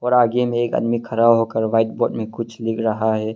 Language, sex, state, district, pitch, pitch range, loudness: Hindi, male, Arunachal Pradesh, Longding, 115 Hz, 110-120 Hz, -19 LUFS